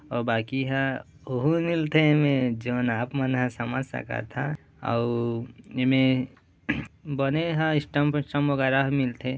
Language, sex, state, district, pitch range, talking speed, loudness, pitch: Chhattisgarhi, male, Chhattisgarh, Raigarh, 125-145 Hz, 135 wpm, -26 LUFS, 130 Hz